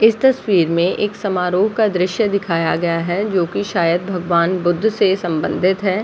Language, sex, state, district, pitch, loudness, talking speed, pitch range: Hindi, female, Bihar, Jahanabad, 185 Hz, -17 LUFS, 190 wpm, 175-205 Hz